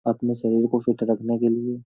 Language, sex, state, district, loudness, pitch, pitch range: Hindi, male, Uttar Pradesh, Jyotiba Phule Nagar, -23 LUFS, 115 Hz, 115-120 Hz